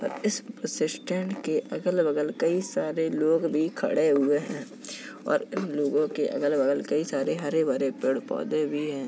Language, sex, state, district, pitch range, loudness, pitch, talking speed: Hindi, male, Uttar Pradesh, Jalaun, 145-180 Hz, -27 LUFS, 155 Hz, 180 wpm